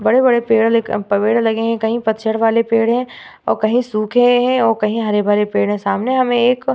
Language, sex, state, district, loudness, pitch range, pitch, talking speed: Hindi, female, Bihar, Vaishali, -16 LUFS, 215-245 Hz, 225 Hz, 220 wpm